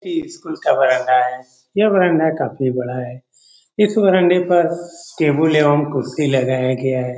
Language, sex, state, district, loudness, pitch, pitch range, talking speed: Hindi, male, Bihar, Saran, -17 LUFS, 145 Hz, 130-180 Hz, 160 wpm